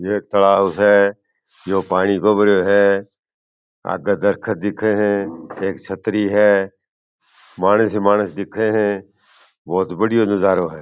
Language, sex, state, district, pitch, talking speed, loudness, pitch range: Marwari, male, Rajasthan, Churu, 100 Hz, 135 wpm, -17 LUFS, 95-105 Hz